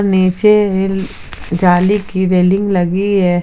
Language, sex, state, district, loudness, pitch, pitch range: Hindi, female, Jharkhand, Palamu, -13 LUFS, 190 Hz, 180-200 Hz